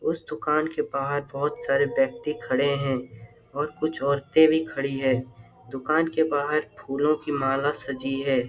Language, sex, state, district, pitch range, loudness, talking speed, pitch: Hindi, male, Bihar, Jamui, 135-155 Hz, -25 LUFS, 160 wpm, 140 Hz